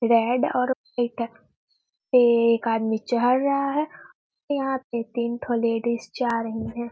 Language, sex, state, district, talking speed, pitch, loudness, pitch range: Hindi, female, Bihar, Muzaffarpur, 145 wpm, 235 Hz, -24 LUFS, 230-255 Hz